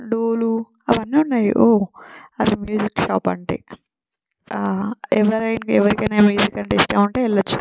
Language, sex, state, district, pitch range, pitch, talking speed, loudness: Telugu, female, Telangana, Nalgonda, 200-225 Hz, 210 Hz, 140 wpm, -19 LUFS